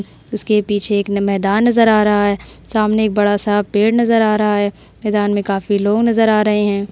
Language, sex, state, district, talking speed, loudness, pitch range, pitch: Hindi, female, Uttar Pradesh, Hamirpur, 215 wpm, -15 LUFS, 205-215 Hz, 210 Hz